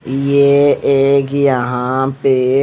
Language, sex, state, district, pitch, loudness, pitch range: Hindi, male, Punjab, Fazilka, 135 Hz, -13 LUFS, 130-140 Hz